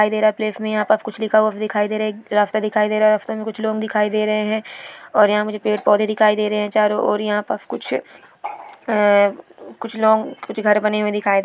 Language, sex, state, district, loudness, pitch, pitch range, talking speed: Hindi, female, West Bengal, Paschim Medinipur, -19 LUFS, 215 Hz, 210-220 Hz, 175 wpm